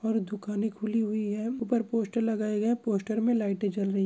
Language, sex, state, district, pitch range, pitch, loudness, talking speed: Hindi, female, Andhra Pradesh, Krishna, 210-225 Hz, 215 Hz, -29 LUFS, 220 wpm